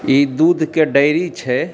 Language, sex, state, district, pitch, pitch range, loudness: Maithili, male, Bihar, Darbhanga, 155 Hz, 140-165 Hz, -15 LUFS